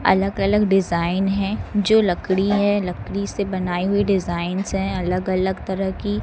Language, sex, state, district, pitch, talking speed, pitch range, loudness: Hindi, female, Madhya Pradesh, Katni, 195 Hz, 165 wpm, 185-200 Hz, -21 LUFS